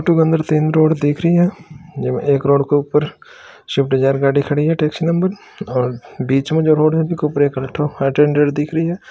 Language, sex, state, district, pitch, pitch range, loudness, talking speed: Marwari, male, Rajasthan, Churu, 150 Hz, 140-160 Hz, -16 LUFS, 215 wpm